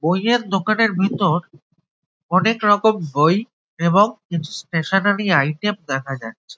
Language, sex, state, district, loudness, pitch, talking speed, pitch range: Bengali, male, West Bengal, Jalpaiguri, -19 LUFS, 185 Hz, 100 wpm, 160-205 Hz